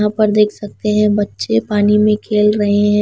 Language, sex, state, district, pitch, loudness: Hindi, female, Punjab, Pathankot, 210 Hz, -15 LUFS